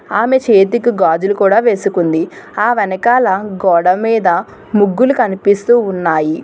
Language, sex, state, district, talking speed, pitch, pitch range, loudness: Telugu, female, Telangana, Hyderabad, 110 wpm, 200 Hz, 180-235 Hz, -13 LUFS